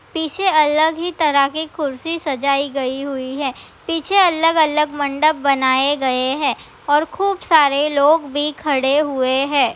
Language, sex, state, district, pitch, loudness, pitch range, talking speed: Hindi, female, Bihar, Begusarai, 295 Hz, -17 LUFS, 275-320 Hz, 145 wpm